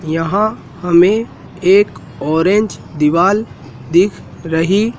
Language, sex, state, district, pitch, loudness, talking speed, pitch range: Hindi, male, Madhya Pradesh, Dhar, 170 Hz, -14 LUFS, 85 wpm, 150-200 Hz